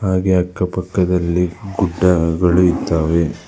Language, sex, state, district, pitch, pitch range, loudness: Kannada, male, Karnataka, Bangalore, 90 Hz, 85-90 Hz, -17 LUFS